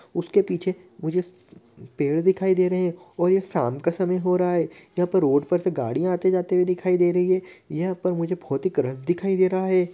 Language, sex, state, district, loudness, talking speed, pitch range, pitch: Hindi, male, Chhattisgarh, Korba, -23 LUFS, 225 wpm, 175-185 Hz, 180 Hz